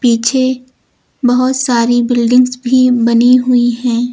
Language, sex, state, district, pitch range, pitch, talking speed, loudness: Hindi, female, Uttar Pradesh, Lucknow, 240-255 Hz, 245 Hz, 115 wpm, -11 LUFS